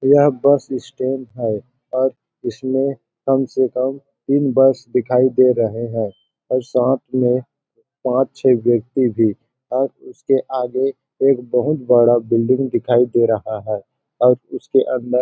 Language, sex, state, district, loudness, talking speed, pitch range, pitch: Hindi, male, Chhattisgarh, Balrampur, -18 LUFS, 140 wpm, 120-135 Hz, 130 Hz